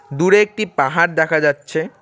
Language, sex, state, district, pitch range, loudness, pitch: Bengali, male, West Bengal, Cooch Behar, 150-190 Hz, -16 LUFS, 160 Hz